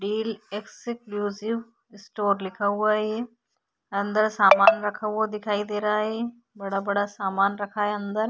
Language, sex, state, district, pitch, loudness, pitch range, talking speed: Hindi, female, Bihar, Vaishali, 210 Hz, -25 LUFS, 200-220 Hz, 150 wpm